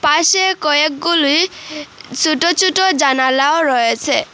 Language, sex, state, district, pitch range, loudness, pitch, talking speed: Bengali, female, Assam, Hailakandi, 285-345 Hz, -14 LUFS, 310 Hz, 85 wpm